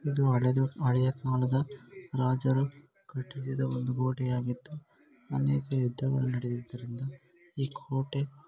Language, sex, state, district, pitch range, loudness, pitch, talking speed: Kannada, male, Karnataka, Dharwad, 125-140 Hz, -31 LUFS, 130 Hz, 90 wpm